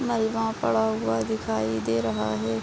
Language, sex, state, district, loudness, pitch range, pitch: Hindi, female, Uttar Pradesh, Jalaun, -26 LUFS, 110-115 Hz, 110 Hz